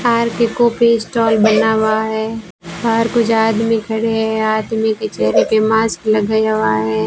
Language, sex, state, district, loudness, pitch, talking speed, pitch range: Hindi, female, Rajasthan, Bikaner, -15 LUFS, 220 Hz, 160 wpm, 215-225 Hz